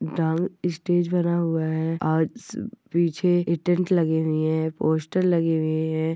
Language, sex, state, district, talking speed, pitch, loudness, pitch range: Hindi, male, West Bengal, Malda, 195 wpm, 165 Hz, -23 LUFS, 160-175 Hz